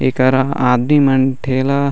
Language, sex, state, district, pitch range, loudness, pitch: Chhattisgarhi, male, Chhattisgarh, Raigarh, 130-140 Hz, -14 LUFS, 130 Hz